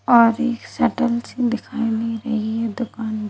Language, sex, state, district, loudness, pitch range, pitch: Hindi, male, Chhattisgarh, Raigarh, -21 LUFS, 225-240 Hz, 230 Hz